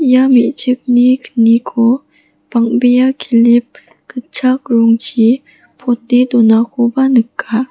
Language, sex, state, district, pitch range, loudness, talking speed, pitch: Garo, female, Meghalaya, West Garo Hills, 235-255 Hz, -12 LUFS, 80 wpm, 245 Hz